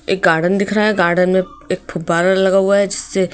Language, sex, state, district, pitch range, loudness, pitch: Hindi, female, Madhya Pradesh, Bhopal, 180-200 Hz, -15 LUFS, 190 Hz